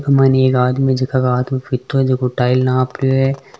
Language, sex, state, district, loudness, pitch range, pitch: Hindi, male, Rajasthan, Nagaur, -16 LUFS, 125-135 Hz, 130 Hz